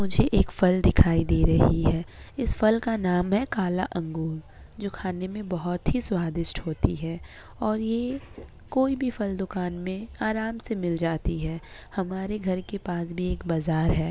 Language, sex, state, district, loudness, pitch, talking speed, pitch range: Hindi, female, Bihar, Kishanganj, -27 LUFS, 185 Hz, 180 wpm, 165-210 Hz